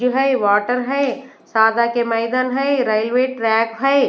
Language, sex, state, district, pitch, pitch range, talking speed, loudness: Hindi, female, Bihar, West Champaran, 250 Hz, 225-265 Hz, 145 wpm, -18 LUFS